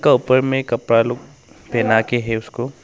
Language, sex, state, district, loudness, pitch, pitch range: Hindi, male, Arunachal Pradesh, Longding, -18 LUFS, 120 Hz, 115-125 Hz